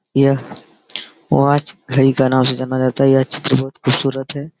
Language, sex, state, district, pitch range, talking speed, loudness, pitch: Hindi, male, Bihar, Araria, 130-140 Hz, 195 wpm, -16 LUFS, 135 Hz